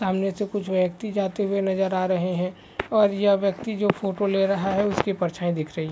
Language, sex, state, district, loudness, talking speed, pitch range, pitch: Hindi, male, Chhattisgarh, Bilaspur, -24 LUFS, 215 wpm, 185-200 Hz, 195 Hz